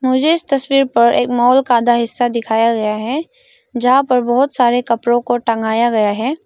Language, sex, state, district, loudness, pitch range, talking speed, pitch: Hindi, female, Arunachal Pradesh, Lower Dibang Valley, -15 LUFS, 235-270 Hz, 185 wpm, 245 Hz